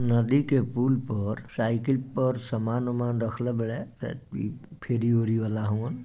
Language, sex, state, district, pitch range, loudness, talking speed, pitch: Bhojpuri, male, Bihar, Gopalganj, 115-125 Hz, -28 LUFS, 170 wpm, 120 Hz